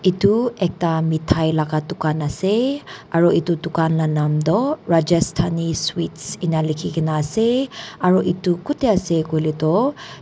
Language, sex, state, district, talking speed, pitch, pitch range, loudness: Nagamese, female, Nagaland, Dimapur, 135 wpm, 170 Hz, 160-195 Hz, -20 LUFS